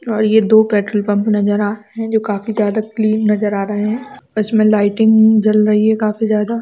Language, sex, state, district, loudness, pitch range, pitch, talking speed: Hindi, female, Chhattisgarh, Raigarh, -15 LUFS, 210-220 Hz, 215 Hz, 210 wpm